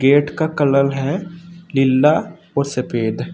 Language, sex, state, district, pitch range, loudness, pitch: Hindi, male, Uttar Pradesh, Shamli, 135-165 Hz, -18 LUFS, 140 Hz